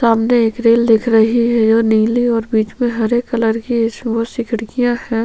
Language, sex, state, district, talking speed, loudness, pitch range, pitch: Hindi, female, Chhattisgarh, Sukma, 230 wpm, -15 LUFS, 225-240 Hz, 230 Hz